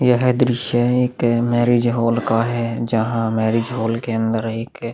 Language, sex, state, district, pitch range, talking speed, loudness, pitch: Hindi, male, Chhattisgarh, Korba, 115-120 Hz, 160 wpm, -19 LUFS, 115 Hz